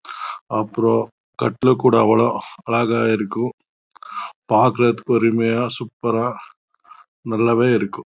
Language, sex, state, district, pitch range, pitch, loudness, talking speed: Tamil, male, Karnataka, Chamarajanagar, 115-125 Hz, 115 Hz, -19 LUFS, 90 wpm